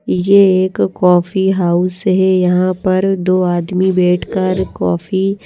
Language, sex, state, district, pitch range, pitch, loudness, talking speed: Hindi, female, Chhattisgarh, Raipur, 180-190 Hz, 185 Hz, -14 LUFS, 130 wpm